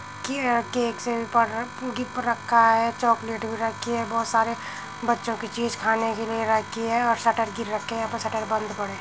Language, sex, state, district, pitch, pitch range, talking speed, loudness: Hindi, female, Uttar Pradesh, Muzaffarnagar, 230 Hz, 225-235 Hz, 180 wpm, -25 LUFS